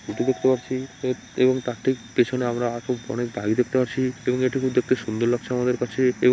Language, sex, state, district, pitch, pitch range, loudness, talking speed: Bengali, male, West Bengal, Malda, 125 Hz, 120-130 Hz, -24 LUFS, 200 wpm